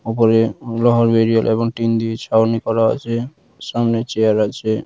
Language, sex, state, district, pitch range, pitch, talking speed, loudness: Bengali, male, West Bengal, Dakshin Dinajpur, 110-115 Hz, 115 Hz, 110 wpm, -17 LUFS